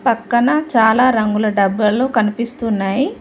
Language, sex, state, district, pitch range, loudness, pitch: Telugu, female, Telangana, Mahabubabad, 215-255 Hz, -15 LUFS, 230 Hz